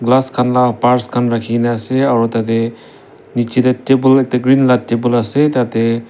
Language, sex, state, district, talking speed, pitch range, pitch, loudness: Nagamese, male, Nagaland, Dimapur, 165 wpm, 115-130 Hz, 120 Hz, -14 LUFS